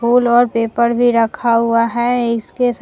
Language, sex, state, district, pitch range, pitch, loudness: Hindi, female, Bihar, Vaishali, 230-245 Hz, 235 Hz, -15 LUFS